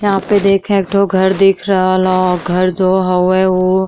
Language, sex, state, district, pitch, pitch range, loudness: Bhojpuri, female, Uttar Pradesh, Deoria, 190 Hz, 185-195 Hz, -13 LUFS